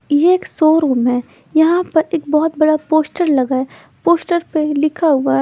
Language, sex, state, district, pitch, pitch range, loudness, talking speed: Hindi, female, Chandigarh, Chandigarh, 310 Hz, 290-325 Hz, -15 LUFS, 190 wpm